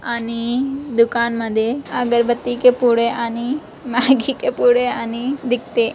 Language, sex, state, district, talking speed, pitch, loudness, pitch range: Marathi, female, Maharashtra, Chandrapur, 100 wpm, 245 Hz, -18 LUFS, 235-265 Hz